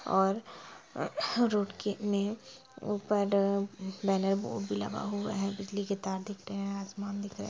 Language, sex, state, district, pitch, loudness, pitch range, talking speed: Hindi, female, Bihar, Sitamarhi, 200 Hz, -33 LUFS, 195-205 Hz, 170 wpm